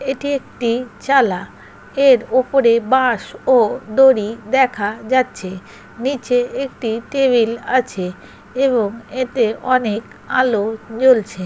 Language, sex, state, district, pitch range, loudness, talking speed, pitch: Bengali, female, West Bengal, Paschim Medinipur, 225-260 Hz, -17 LUFS, 105 wpm, 245 Hz